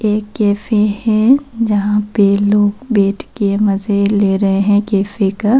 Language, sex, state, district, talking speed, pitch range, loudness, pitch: Hindi, female, Arunachal Pradesh, Papum Pare, 150 wpm, 200-215 Hz, -14 LUFS, 205 Hz